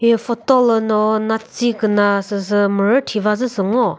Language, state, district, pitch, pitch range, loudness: Chakhesang, Nagaland, Dimapur, 220 Hz, 205-235 Hz, -17 LUFS